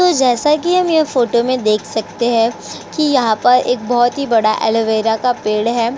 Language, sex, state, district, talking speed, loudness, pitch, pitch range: Hindi, female, Uttar Pradesh, Jyotiba Phule Nagar, 210 wpm, -15 LUFS, 240 Hz, 225-260 Hz